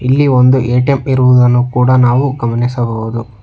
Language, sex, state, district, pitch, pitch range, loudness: Kannada, male, Karnataka, Bangalore, 125 Hz, 120-130 Hz, -11 LUFS